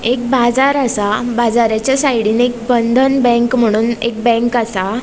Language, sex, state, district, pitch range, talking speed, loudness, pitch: Konkani, female, Goa, North and South Goa, 230-250 Hz, 145 wpm, -14 LUFS, 235 Hz